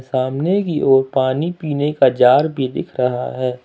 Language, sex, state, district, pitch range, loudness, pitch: Hindi, male, Jharkhand, Ranchi, 130-150 Hz, -17 LUFS, 135 Hz